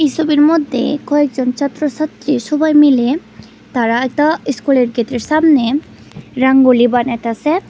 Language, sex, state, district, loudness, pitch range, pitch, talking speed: Bengali, female, Tripura, West Tripura, -14 LUFS, 250-300 Hz, 275 Hz, 100 wpm